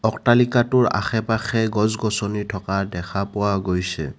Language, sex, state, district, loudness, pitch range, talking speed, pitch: Assamese, male, Assam, Kamrup Metropolitan, -21 LUFS, 100-115 Hz, 100 wpm, 105 Hz